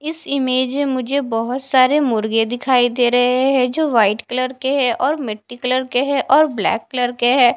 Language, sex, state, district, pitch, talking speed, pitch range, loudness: Hindi, female, Punjab, Fazilka, 255 Hz, 205 wpm, 245-275 Hz, -17 LUFS